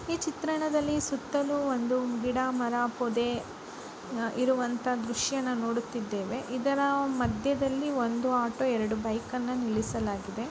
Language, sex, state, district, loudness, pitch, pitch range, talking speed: Kannada, female, Karnataka, Dakshina Kannada, -30 LUFS, 250 Hz, 235-275 Hz, 105 wpm